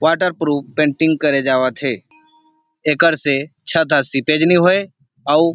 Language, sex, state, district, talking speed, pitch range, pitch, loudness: Chhattisgarhi, male, Chhattisgarh, Rajnandgaon, 150 wpm, 140-175 Hz, 155 Hz, -16 LUFS